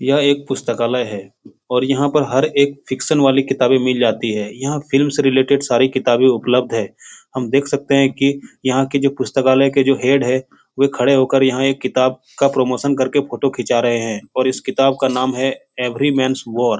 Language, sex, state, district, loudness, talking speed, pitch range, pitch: Hindi, male, Uttar Pradesh, Etah, -16 LUFS, 210 wpm, 125-140 Hz, 130 Hz